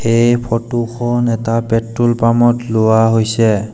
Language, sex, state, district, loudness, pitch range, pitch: Assamese, male, Assam, Sonitpur, -14 LUFS, 115-120 Hz, 115 Hz